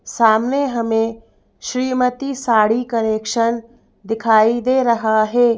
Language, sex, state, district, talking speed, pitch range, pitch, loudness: Hindi, female, Madhya Pradesh, Bhopal, 95 wpm, 225-250 Hz, 230 Hz, -17 LUFS